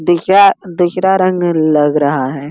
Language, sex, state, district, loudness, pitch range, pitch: Hindi, male, Bihar, Jamui, -12 LUFS, 150-185 Hz, 175 Hz